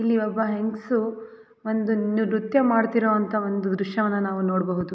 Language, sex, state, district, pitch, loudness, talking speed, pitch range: Kannada, female, Karnataka, Belgaum, 220 Hz, -24 LUFS, 135 wpm, 205-225 Hz